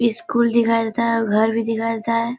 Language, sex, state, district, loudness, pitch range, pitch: Hindi, female, Bihar, Kishanganj, -19 LUFS, 225-235 Hz, 230 Hz